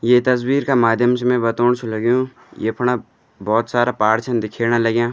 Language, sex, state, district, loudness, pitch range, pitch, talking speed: Garhwali, male, Uttarakhand, Uttarkashi, -18 LUFS, 115-125 Hz, 120 Hz, 185 wpm